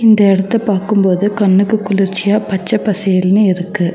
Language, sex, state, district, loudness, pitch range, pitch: Tamil, female, Tamil Nadu, Nilgiris, -13 LUFS, 190-210 Hz, 200 Hz